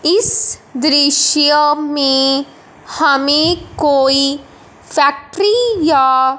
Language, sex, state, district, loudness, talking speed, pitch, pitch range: Hindi, male, Punjab, Fazilka, -13 LUFS, 65 wpm, 290 Hz, 275-305 Hz